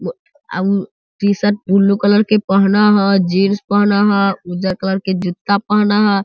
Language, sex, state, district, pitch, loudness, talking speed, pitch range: Hindi, male, Bihar, Sitamarhi, 200 Hz, -15 LUFS, 165 wpm, 190-205 Hz